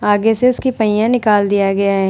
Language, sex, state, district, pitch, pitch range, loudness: Hindi, female, Bihar, Vaishali, 210 Hz, 200-230 Hz, -14 LUFS